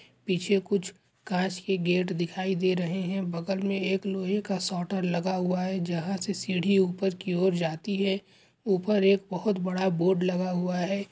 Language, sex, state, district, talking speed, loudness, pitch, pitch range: Hindi, male, Chhattisgarh, Sukma, 185 wpm, -28 LUFS, 190 Hz, 180-195 Hz